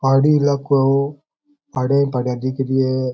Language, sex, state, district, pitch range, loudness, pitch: Rajasthani, male, Rajasthan, Churu, 130-140 Hz, -18 LUFS, 135 Hz